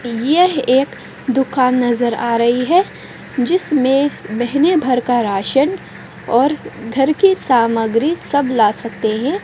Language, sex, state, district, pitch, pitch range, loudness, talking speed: Hindi, female, Bihar, Madhepura, 255 Hz, 235-285 Hz, -15 LUFS, 125 wpm